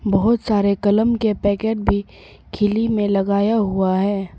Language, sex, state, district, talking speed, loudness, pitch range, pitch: Hindi, female, Arunachal Pradesh, Papum Pare, 150 wpm, -19 LUFS, 200-220 Hz, 205 Hz